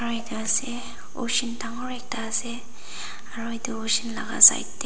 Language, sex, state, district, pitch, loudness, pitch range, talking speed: Nagamese, female, Nagaland, Dimapur, 235 Hz, -22 LUFS, 225-245 Hz, 125 wpm